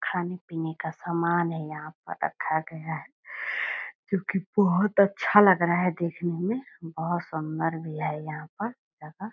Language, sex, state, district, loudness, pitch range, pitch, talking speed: Hindi, female, Bihar, Purnia, -27 LUFS, 160-195 Hz, 170 Hz, 160 wpm